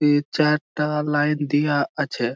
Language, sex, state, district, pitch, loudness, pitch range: Bengali, male, West Bengal, Malda, 150 Hz, -22 LUFS, 145-150 Hz